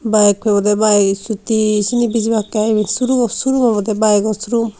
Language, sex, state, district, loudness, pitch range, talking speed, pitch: Chakma, female, Tripura, Unakoti, -15 LUFS, 210-230 Hz, 160 wpm, 215 Hz